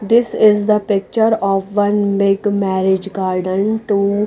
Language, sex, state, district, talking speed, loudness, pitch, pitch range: English, female, Odisha, Nuapada, 155 wpm, -16 LUFS, 200 Hz, 195-210 Hz